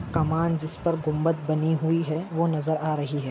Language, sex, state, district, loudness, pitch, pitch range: Hindi, male, Maharashtra, Nagpur, -26 LUFS, 160 Hz, 155-165 Hz